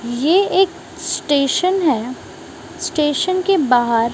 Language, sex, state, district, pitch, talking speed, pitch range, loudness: Hindi, female, Maharashtra, Mumbai Suburban, 310 Hz, 100 wpm, 250-370 Hz, -17 LUFS